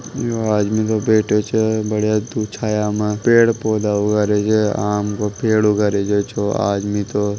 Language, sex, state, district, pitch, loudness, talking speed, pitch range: Marwari, male, Rajasthan, Nagaur, 105 Hz, -18 LUFS, 160 wpm, 105-110 Hz